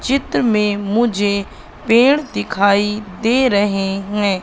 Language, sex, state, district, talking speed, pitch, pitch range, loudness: Hindi, female, Madhya Pradesh, Katni, 110 wpm, 205 Hz, 200-235 Hz, -16 LUFS